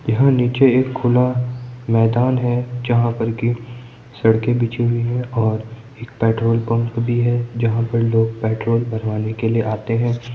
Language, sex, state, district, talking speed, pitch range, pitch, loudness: Hindi, male, Uttar Pradesh, Jyotiba Phule Nagar, 160 wpm, 115-120 Hz, 120 Hz, -18 LUFS